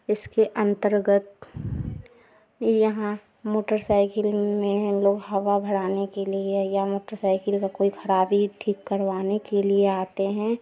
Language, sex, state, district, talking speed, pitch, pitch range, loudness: Hindi, female, Bihar, Muzaffarpur, 120 wpm, 200 Hz, 195-210 Hz, -24 LUFS